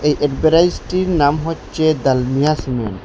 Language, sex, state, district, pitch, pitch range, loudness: Bengali, male, Assam, Hailakandi, 150 Hz, 135-165 Hz, -16 LUFS